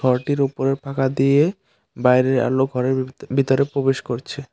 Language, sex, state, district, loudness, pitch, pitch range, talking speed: Bengali, male, West Bengal, Cooch Behar, -20 LUFS, 135 Hz, 130-140 Hz, 145 wpm